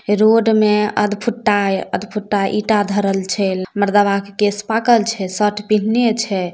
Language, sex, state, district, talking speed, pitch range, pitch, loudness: Maithili, female, Bihar, Samastipur, 145 wpm, 200-215 Hz, 210 Hz, -17 LUFS